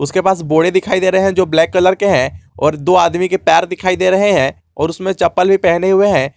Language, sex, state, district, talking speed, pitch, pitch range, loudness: Hindi, male, Jharkhand, Garhwa, 265 wpm, 185 Hz, 160-190 Hz, -13 LUFS